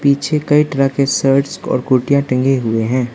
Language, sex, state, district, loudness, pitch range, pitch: Hindi, male, Arunachal Pradesh, Lower Dibang Valley, -15 LUFS, 130-140 Hz, 135 Hz